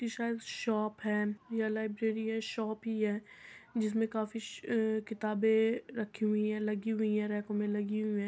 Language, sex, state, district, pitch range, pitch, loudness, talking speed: Hindi, female, Uttar Pradesh, Muzaffarnagar, 210-225 Hz, 220 Hz, -34 LUFS, 190 wpm